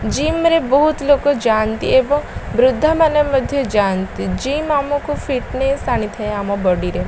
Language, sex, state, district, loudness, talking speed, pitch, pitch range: Odia, female, Odisha, Malkangiri, -17 LUFS, 145 wpm, 270 Hz, 215-290 Hz